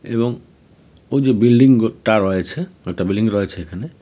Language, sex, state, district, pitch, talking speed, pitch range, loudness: Bengali, male, Tripura, West Tripura, 110 Hz, 150 wpm, 95-130 Hz, -17 LUFS